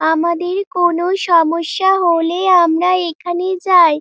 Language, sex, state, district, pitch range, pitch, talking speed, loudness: Bengali, female, West Bengal, Dakshin Dinajpur, 335-365 Hz, 350 Hz, 105 wpm, -14 LUFS